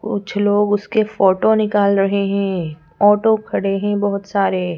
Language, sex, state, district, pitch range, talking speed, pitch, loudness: Hindi, female, Madhya Pradesh, Bhopal, 195-210 Hz, 150 wpm, 200 Hz, -17 LUFS